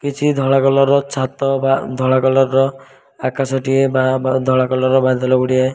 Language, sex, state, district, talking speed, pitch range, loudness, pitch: Odia, male, Odisha, Malkangiri, 190 wpm, 130-135 Hz, -16 LUFS, 135 Hz